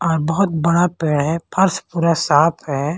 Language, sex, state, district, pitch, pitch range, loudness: Hindi, female, Punjab, Pathankot, 165 Hz, 155-175 Hz, -17 LUFS